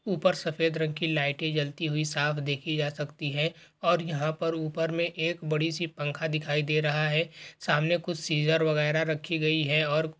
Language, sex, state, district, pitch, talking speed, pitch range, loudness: Hindi, male, Uttar Pradesh, Jalaun, 155 Hz, 200 wpm, 150-165 Hz, -28 LUFS